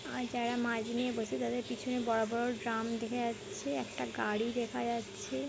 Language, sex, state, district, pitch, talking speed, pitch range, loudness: Bengali, female, West Bengal, Jhargram, 235 Hz, 185 wpm, 225-240 Hz, -36 LUFS